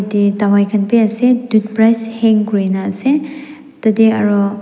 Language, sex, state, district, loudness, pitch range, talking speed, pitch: Nagamese, female, Nagaland, Dimapur, -14 LUFS, 205-230 Hz, 145 wpm, 220 Hz